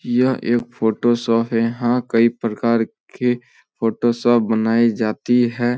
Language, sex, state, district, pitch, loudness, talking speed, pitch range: Hindi, male, Bihar, Samastipur, 120 Hz, -19 LUFS, 135 wpm, 115-120 Hz